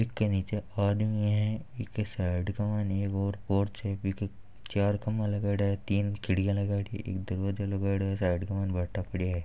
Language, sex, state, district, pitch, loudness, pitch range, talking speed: Marwari, male, Rajasthan, Nagaur, 100 Hz, -31 LUFS, 100-105 Hz, 165 wpm